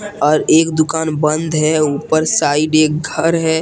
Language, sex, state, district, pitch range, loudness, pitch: Hindi, male, Jharkhand, Deoghar, 155-160 Hz, -14 LUFS, 155 Hz